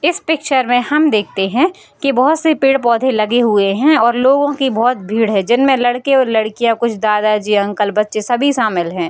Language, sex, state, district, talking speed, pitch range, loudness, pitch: Hindi, female, Bihar, East Champaran, 200 wpm, 215-270 Hz, -14 LUFS, 240 Hz